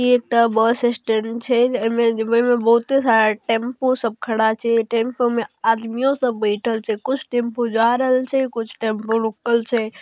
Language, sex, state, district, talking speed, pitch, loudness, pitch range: Maithili, female, Bihar, Darbhanga, 180 wpm, 235 Hz, -19 LUFS, 225-245 Hz